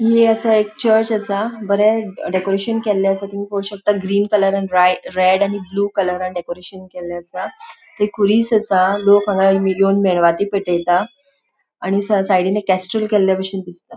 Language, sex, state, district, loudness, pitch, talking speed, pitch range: Konkani, female, Goa, North and South Goa, -17 LUFS, 200 Hz, 160 wpm, 185-210 Hz